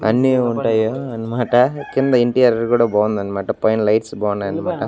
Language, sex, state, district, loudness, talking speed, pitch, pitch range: Telugu, male, Andhra Pradesh, Annamaya, -17 LUFS, 135 wpm, 115 Hz, 110-125 Hz